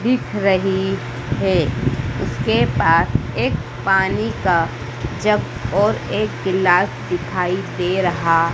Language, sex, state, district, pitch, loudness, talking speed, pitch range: Hindi, female, Madhya Pradesh, Dhar, 170 Hz, -19 LUFS, 105 wpm, 125-190 Hz